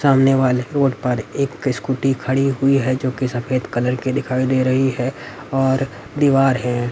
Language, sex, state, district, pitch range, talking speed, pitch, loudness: Hindi, male, Haryana, Rohtak, 125-135 Hz, 180 wpm, 130 Hz, -19 LUFS